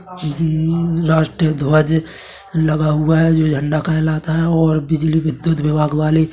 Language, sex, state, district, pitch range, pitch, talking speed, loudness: Hindi, male, Chhattisgarh, Bilaspur, 155-160 Hz, 160 Hz, 160 wpm, -16 LUFS